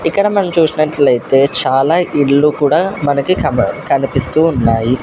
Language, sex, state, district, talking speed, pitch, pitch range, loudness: Telugu, male, Andhra Pradesh, Sri Satya Sai, 120 wpm, 145 Hz, 135-165 Hz, -13 LUFS